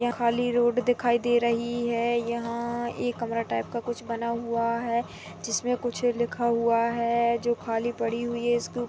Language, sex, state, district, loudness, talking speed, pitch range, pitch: Hindi, female, Chhattisgarh, Rajnandgaon, -27 LUFS, 180 wpm, 235-240 Hz, 235 Hz